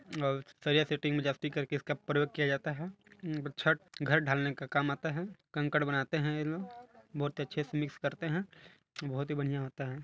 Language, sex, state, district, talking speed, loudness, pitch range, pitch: Hindi, male, Chhattisgarh, Balrampur, 195 wpm, -34 LUFS, 140-160 Hz, 150 Hz